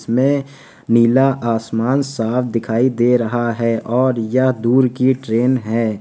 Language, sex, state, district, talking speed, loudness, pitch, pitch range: Hindi, male, Uttar Pradesh, Hamirpur, 140 wpm, -17 LUFS, 120 Hz, 115-130 Hz